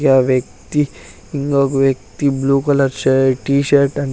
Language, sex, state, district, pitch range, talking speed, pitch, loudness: Telugu, male, Andhra Pradesh, Sri Satya Sai, 135-140 Hz, 160 wpm, 140 Hz, -16 LUFS